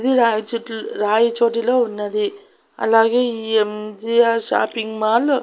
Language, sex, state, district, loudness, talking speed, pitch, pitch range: Telugu, female, Andhra Pradesh, Annamaya, -18 LUFS, 110 wpm, 230 Hz, 220-245 Hz